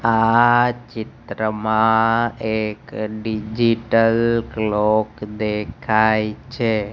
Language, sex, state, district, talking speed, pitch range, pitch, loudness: Gujarati, male, Gujarat, Gandhinagar, 60 wpm, 110-115 Hz, 110 Hz, -19 LUFS